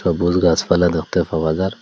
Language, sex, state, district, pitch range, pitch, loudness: Bengali, male, Assam, Hailakandi, 80-90 Hz, 85 Hz, -17 LUFS